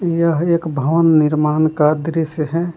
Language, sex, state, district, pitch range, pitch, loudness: Hindi, male, Jharkhand, Palamu, 155-165 Hz, 160 Hz, -16 LUFS